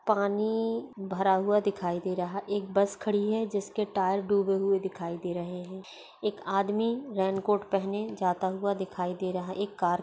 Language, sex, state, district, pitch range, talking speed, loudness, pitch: Hindi, female, Bihar, Begusarai, 185-205 Hz, 185 wpm, -30 LUFS, 195 Hz